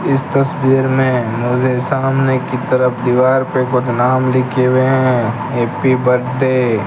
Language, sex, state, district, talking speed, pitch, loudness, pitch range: Hindi, male, Rajasthan, Bikaner, 150 wpm, 130 Hz, -14 LUFS, 125-130 Hz